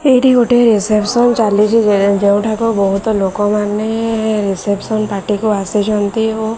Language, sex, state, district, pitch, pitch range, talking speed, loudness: Odia, female, Odisha, Sambalpur, 215 Hz, 205-225 Hz, 125 wpm, -14 LUFS